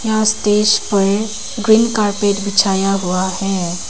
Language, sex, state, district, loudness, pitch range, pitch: Hindi, female, Arunachal Pradesh, Papum Pare, -15 LUFS, 195-215 Hz, 200 Hz